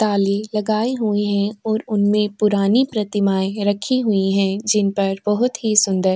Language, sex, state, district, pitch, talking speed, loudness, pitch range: Hindi, female, Uttar Pradesh, Jyotiba Phule Nagar, 210 Hz, 165 wpm, -19 LUFS, 200-215 Hz